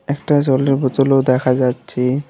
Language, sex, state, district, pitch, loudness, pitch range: Bengali, male, West Bengal, Alipurduar, 135 Hz, -16 LUFS, 130-140 Hz